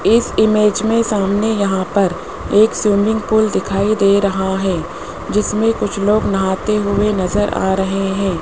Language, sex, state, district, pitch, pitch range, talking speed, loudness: Hindi, male, Rajasthan, Jaipur, 205 Hz, 195-215 Hz, 155 wpm, -16 LUFS